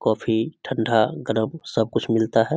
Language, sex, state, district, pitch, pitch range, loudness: Hindi, male, Bihar, Samastipur, 115 Hz, 110-135 Hz, -23 LUFS